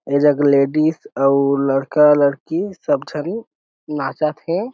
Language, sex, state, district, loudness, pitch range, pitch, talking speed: Chhattisgarhi, male, Chhattisgarh, Sarguja, -17 LUFS, 140-155 Hz, 145 Hz, 125 wpm